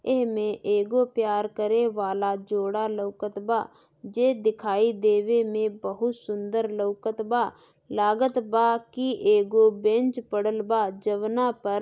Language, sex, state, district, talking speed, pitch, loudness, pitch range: Bhojpuri, female, Bihar, Gopalganj, 120 wpm, 215 Hz, -25 LUFS, 210-230 Hz